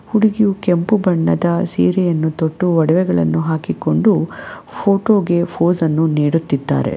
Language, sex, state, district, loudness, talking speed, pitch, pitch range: Kannada, female, Karnataka, Bangalore, -16 LUFS, 85 wpm, 165 Hz, 155-185 Hz